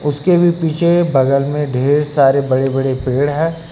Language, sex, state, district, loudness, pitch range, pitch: Hindi, male, Uttar Pradesh, Lucknow, -15 LUFS, 135-165 Hz, 145 Hz